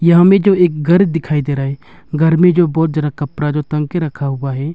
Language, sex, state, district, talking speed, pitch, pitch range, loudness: Hindi, male, Arunachal Pradesh, Longding, 265 wpm, 155 Hz, 145-175 Hz, -14 LUFS